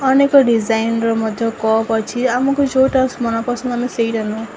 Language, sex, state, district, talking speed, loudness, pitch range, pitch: Odia, female, Odisha, Sambalpur, 170 wpm, -16 LUFS, 225-260 Hz, 230 Hz